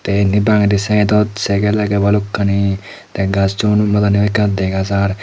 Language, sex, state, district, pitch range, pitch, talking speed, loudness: Chakma, male, Tripura, Dhalai, 100-105 Hz, 100 Hz, 150 wpm, -15 LUFS